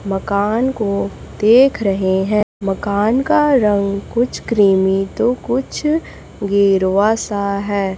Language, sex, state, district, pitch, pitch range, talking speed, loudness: Hindi, female, Chhattisgarh, Raipur, 205 Hz, 200-235 Hz, 115 wpm, -16 LUFS